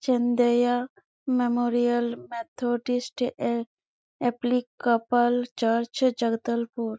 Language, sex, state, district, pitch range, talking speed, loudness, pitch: Hindi, female, Chhattisgarh, Bastar, 235-245 Hz, 60 wpm, -26 LUFS, 240 Hz